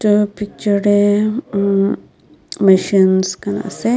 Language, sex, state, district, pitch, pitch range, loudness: Nagamese, female, Nagaland, Dimapur, 205 Hz, 195-210 Hz, -15 LUFS